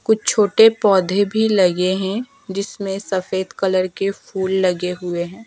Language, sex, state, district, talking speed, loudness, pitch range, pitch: Hindi, female, Madhya Pradesh, Dhar, 155 wpm, -18 LUFS, 185-210 Hz, 195 Hz